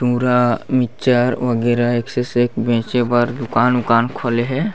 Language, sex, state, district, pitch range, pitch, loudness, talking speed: Chhattisgarhi, male, Chhattisgarh, Bastar, 120-125 Hz, 120 Hz, -17 LUFS, 150 wpm